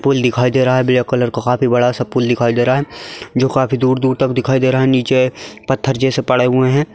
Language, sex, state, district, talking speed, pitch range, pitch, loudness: Hindi, male, Bihar, Saharsa, 260 wpm, 125-130 Hz, 130 Hz, -15 LUFS